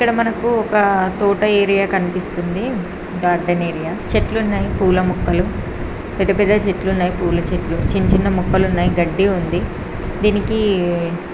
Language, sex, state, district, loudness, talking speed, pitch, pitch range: Telugu, female, Andhra Pradesh, Srikakulam, -18 LUFS, 115 wpm, 190 Hz, 175-205 Hz